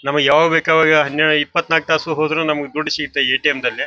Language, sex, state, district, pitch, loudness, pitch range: Kannada, male, Karnataka, Bijapur, 155 Hz, -16 LUFS, 150-160 Hz